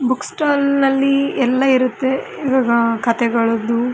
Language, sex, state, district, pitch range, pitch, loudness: Kannada, female, Karnataka, Raichur, 235-270 Hz, 255 Hz, -17 LUFS